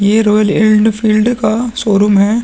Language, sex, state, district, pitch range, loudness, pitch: Hindi, male, Bihar, Vaishali, 210-225 Hz, -11 LUFS, 215 Hz